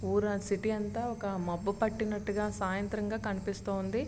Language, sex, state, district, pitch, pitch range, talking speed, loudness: Telugu, male, Andhra Pradesh, Srikakulam, 205 Hz, 200-215 Hz, 120 wpm, -34 LUFS